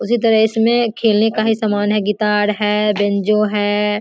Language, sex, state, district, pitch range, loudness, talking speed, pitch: Hindi, female, Bihar, Samastipur, 210-220 Hz, -16 LUFS, 180 wpm, 210 Hz